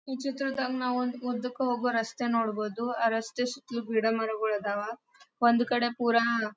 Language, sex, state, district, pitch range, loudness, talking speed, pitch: Kannada, female, Karnataka, Dharwad, 225-250 Hz, -29 LUFS, 165 wpm, 235 Hz